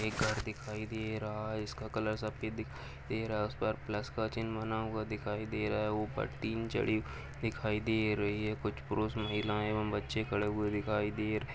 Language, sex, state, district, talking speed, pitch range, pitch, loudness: Hindi, male, Uttarakhand, Tehri Garhwal, 210 wpm, 105-110 Hz, 110 Hz, -36 LUFS